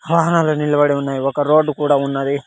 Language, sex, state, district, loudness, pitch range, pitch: Telugu, male, Andhra Pradesh, Sri Satya Sai, -16 LUFS, 140-155 Hz, 145 Hz